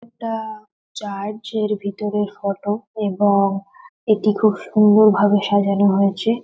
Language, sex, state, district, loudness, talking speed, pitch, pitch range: Bengali, female, West Bengal, North 24 Parganas, -18 LUFS, 95 wpm, 210 Hz, 200-215 Hz